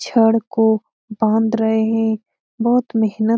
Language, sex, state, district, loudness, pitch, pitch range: Hindi, female, Bihar, Lakhisarai, -18 LUFS, 225 Hz, 220-225 Hz